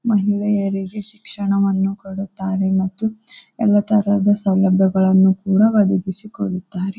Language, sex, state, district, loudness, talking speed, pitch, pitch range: Kannada, female, Karnataka, Bijapur, -18 LUFS, 85 wpm, 195 Hz, 190-210 Hz